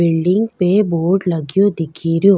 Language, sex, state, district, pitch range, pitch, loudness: Rajasthani, female, Rajasthan, Nagaur, 165-200 Hz, 180 Hz, -16 LUFS